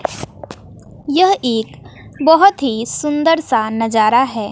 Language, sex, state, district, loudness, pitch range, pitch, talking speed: Hindi, female, Bihar, West Champaran, -14 LUFS, 225-320 Hz, 265 Hz, 105 wpm